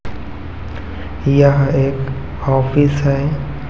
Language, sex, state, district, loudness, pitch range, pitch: Hindi, male, Chhattisgarh, Raipur, -16 LUFS, 95-140 Hz, 135 Hz